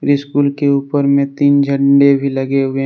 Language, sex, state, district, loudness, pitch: Hindi, male, Jharkhand, Deoghar, -13 LUFS, 140 Hz